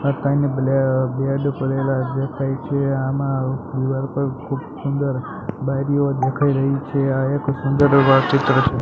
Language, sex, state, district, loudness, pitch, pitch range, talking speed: Gujarati, male, Gujarat, Gandhinagar, -20 LUFS, 135 Hz, 135-140 Hz, 135 wpm